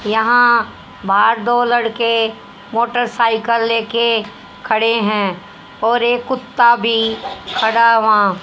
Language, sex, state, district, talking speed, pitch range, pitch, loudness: Hindi, female, Haryana, Jhajjar, 100 wpm, 220-235 Hz, 230 Hz, -15 LUFS